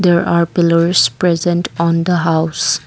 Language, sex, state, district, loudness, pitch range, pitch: English, female, Assam, Kamrup Metropolitan, -14 LUFS, 165-175 Hz, 170 Hz